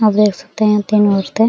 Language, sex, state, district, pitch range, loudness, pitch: Hindi, female, Jharkhand, Sahebganj, 205-215 Hz, -14 LUFS, 210 Hz